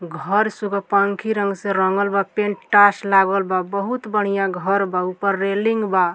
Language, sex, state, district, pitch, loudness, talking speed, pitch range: Bhojpuri, female, Bihar, Muzaffarpur, 200 Hz, -19 LUFS, 165 wpm, 195-205 Hz